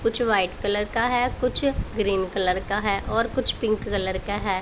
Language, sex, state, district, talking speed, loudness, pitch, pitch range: Hindi, female, Punjab, Pathankot, 210 wpm, -23 LUFS, 205 Hz, 195-230 Hz